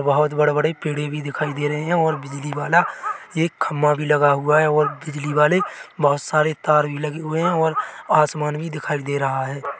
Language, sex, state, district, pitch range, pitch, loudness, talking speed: Hindi, male, Chhattisgarh, Bilaspur, 145-155 Hz, 150 Hz, -20 LUFS, 210 wpm